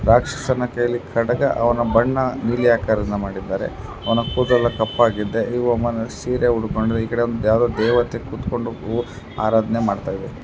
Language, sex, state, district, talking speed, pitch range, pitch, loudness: Kannada, male, Karnataka, Dharwad, 125 wpm, 110-120 Hz, 115 Hz, -20 LUFS